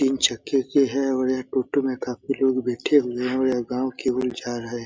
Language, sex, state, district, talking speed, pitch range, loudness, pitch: Hindi, male, Bihar, Supaul, 270 wpm, 125-135 Hz, -23 LUFS, 130 Hz